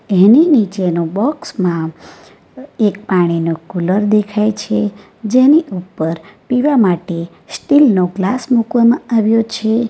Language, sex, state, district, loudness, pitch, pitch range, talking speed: Gujarati, female, Gujarat, Valsad, -14 LUFS, 210 Hz, 185-235 Hz, 110 wpm